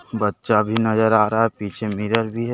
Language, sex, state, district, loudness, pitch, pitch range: Hindi, male, Jharkhand, Deoghar, -20 LUFS, 110 Hz, 105-115 Hz